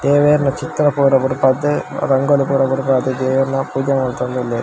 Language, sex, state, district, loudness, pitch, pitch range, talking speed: Tulu, male, Karnataka, Dakshina Kannada, -16 LUFS, 135 Hz, 130-140 Hz, 130 wpm